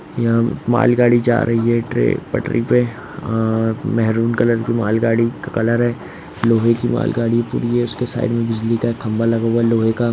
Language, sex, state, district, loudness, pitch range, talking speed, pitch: Hindi, male, Bihar, East Champaran, -17 LUFS, 115-120 Hz, 200 wpm, 115 Hz